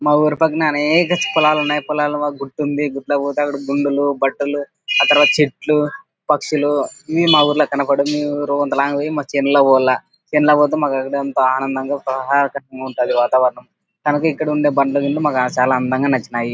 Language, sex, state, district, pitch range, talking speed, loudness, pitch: Telugu, male, Andhra Pradesh, Anantapur, 135-150 Hz, 125 wpm, -17 LUFS, 145 Hz